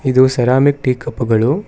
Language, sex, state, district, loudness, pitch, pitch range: Kannada, male, Karnataka, Bangalore, -14 LUFS, 130 Hz, 125-140 Hz